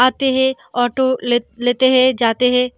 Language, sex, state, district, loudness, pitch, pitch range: Hindi, female, Bihar, Samastipur, -16 LUFS, 250 Hz, 245-260 Hz